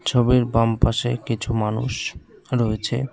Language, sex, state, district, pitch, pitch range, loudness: Bengali, male, West Bengal, Cooch Behar, 120 Hz, 115-125 Hz, -22 LUFS